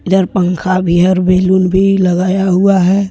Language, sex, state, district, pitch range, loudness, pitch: Hindi, male, Jharkhand, Deoghar, 185-190 Hz, -11 LUFS, 185 Hz